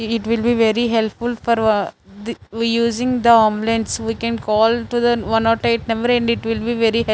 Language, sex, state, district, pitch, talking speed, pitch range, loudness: English, female, Chandigarh, Chandigarh, 230 Hz, 220 wpm, 225-235 Hz, -18 LUFS